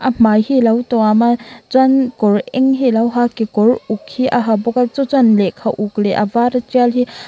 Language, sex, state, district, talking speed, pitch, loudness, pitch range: Mizo, female, Mizoram, Aizawl, 220 wpm, 235 Hz, -14 LUFS, 220-255 Hz